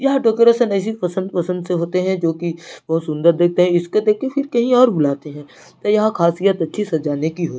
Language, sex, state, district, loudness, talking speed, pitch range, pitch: Hindi, male, Chhattisgarh, Narayanpur, -17 LUFS, 245 wpm, 165-215 Hz, 180 Hz